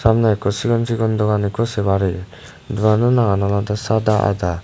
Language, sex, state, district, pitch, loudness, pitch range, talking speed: Chakma, male, Tripura, West Tripura, 105 Hz, -18 LUFS, 100-110 Hz, 170 wpm